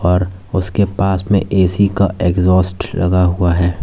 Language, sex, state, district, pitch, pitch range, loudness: Hindi, male, Uttar Pradesh, Lalitpur, 90 Hz, 90-95 Hz, -15 LUFS